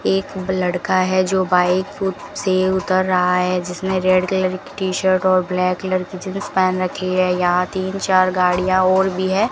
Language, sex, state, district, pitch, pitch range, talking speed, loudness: Hindi, female, Rajasthan, Bikaner, 185 Hz, 180-190 Hz, 190 wpm, -18 LUFS